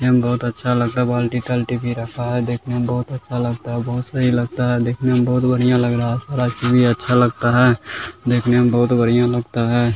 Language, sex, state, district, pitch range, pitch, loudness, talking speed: Hindi, male, Bihar, Kishanganj, 120-125 Hz, 120 Hz, -18 LUFS, 230 wpm